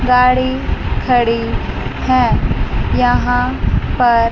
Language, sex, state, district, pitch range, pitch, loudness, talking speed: Hindi, female, Chandigarh, Chandigarh, 235-255 Hz, 250 Hz, -15 LUFS, 70 wpm